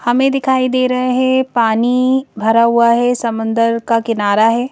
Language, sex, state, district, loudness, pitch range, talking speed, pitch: Hindi, female, Madhya Pradesh, Bhopal, -14 LUFS, 230-255 Hz, 165 wpm, 240 Hz